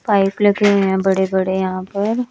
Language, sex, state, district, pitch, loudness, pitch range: Hindi, male, Chandigarh, Chandigarh, 195 Hz, -17 LUFS, 190-205 Hz